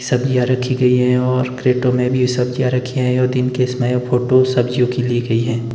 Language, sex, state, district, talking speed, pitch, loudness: Hindi, male, Himachal Pradesh, Shimla, 240 wpm, 125 Hz, -16 LUFS